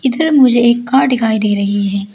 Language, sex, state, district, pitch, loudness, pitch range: Hindi, female, Arunachal Pradesh, Lower Dibang Valley, 240 Hz, -12 LUFS, 205-260 Hz